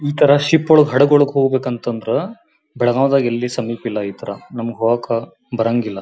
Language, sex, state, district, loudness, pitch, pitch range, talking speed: Kannada, male, Karnataka, Belgaum, -17 LUFS, 125 Hz, 115-145 Hz, 130 wpm